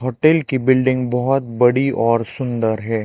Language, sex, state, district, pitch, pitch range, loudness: Hindi, male, Chhattisgarh, Raipur, 125 Hz, 115-130 Hz, -17 LUFS